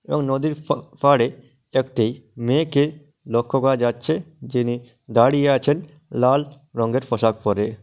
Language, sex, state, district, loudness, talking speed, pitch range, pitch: Bengali, male, West Bengal, Malda, -21 LUFS, 120 wpm, 120-145 Hz, 130 Hz